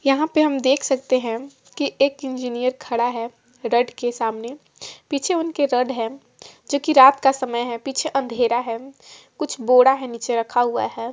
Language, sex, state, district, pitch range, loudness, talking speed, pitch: Hindi, female, Jharkhand, Sahebganj, 240-275 Hz, -20 LUFS, 185 wpm, 255 Hz